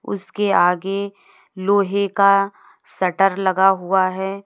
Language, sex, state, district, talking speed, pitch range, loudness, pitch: Hindi, female, Uttar Pradesh, Lalitpur, 110 wpm, 190-200 Hz, -18 LUFS, 195 Hz